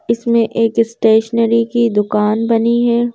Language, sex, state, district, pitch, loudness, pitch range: Hindi, female, Madhya Pradesh, Bhopal, 230 Hz, -14 LUFS, 225-235 Hz